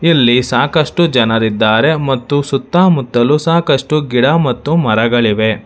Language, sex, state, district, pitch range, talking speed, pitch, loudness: Kannada, male, Karnataka, Bangalore, 120-160 Hz, 105 wpm, 135 Hz, -12 LUFS